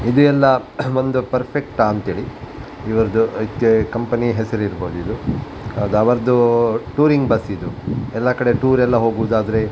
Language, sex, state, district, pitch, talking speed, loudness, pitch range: Kannada, male, Karnataka, Dakshina Kannada, 115 Hz, 115 wpm, -18 LUFS, 110-125 Hz